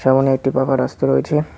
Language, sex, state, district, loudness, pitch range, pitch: Bengali, male, West Bengal, Cooch Behar, -17 LUFS, 130-135 Hz, 135 Hz